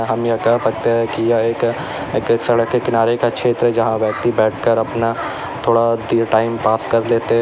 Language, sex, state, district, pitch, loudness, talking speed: Hindi, male, Uttar Pradesh, Lalitpur, 115 Hz, -17 LUFS, 195 wpm